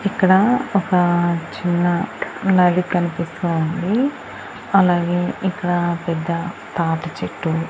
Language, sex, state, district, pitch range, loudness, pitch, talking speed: Telugu, female, Andhra Pradesh, Annamaya, 170-190 Hz, -19 LUFS, 175 Hz, 100 wpm